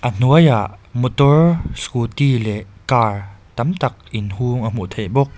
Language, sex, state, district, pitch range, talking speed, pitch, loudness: Mizo, male, Mizoram, Aizawl, 105-140 Hz, 145 wpm, 120 Hz, -17 LUFS